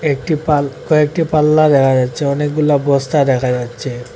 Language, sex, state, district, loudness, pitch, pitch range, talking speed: Bengali, male, Assam, Hailakandi, -14 LUFS, 145 Hz, 130-150 Hz, 145 wpm